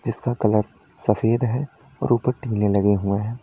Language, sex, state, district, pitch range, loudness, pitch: Hindi, male, Uttar Pradesh, Lalitpur, 105-120 Hz, -21 LUFS, 115 Hz